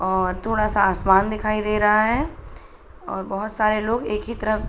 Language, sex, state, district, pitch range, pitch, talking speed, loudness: Hindi, female, Uttar Pradesh, Budaun, 195-215 Hz, 215 Hz, 205 wpm, -21 LUFS